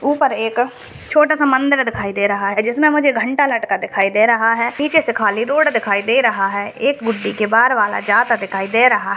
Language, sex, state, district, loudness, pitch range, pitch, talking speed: Hindi, female, Uttar Pradesh, Hamirpur, -16 LUFS, 210-275 Hz, 230 Hz, 230 wpm